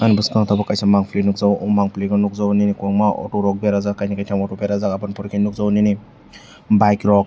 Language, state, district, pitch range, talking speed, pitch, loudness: Kokborok, Tripura, West Tripura, 100-105 Hz, 205 wpm, 100 Hz, -18 LUFS